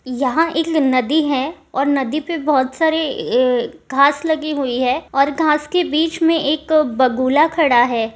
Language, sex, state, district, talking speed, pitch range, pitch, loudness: Hindi, female, Bihar, Supaul, 170 wpm, 260-315 Hz, 290 Hz, -17 LUFS